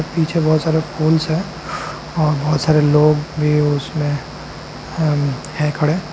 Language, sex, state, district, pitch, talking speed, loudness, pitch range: Hindi, male, Uttar Pradesh, Lalitpur, 150 Hz, 125 wpm, -18 LUFS, 150-160 Hz